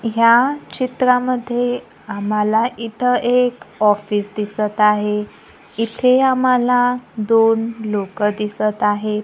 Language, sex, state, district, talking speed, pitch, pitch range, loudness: Marathi, female, Maharashtra, Gondia, 90 wpm, 225 Hz, 210-250 Hz, -17 LUFS